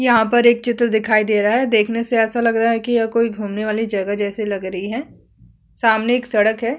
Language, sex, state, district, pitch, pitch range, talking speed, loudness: Hindi, female, Chhattisgarh, Kabirdham, 225 Hz, 215-235 Hz, 245 wpm, -17 LUFS